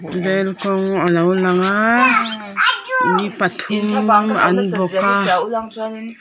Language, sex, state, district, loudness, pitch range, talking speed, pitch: Mizo, female, Mizoram, Aizawl, -16 LUFS, 185-220 Hz, 95 wpm, 200 Hz